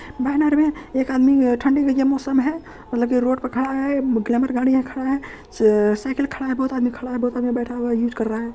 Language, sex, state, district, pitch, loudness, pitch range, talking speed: Hindi, female, Bihar, Saharsa, 260 Hz, -20 LUFS, 245-270 Hz, 265 wpm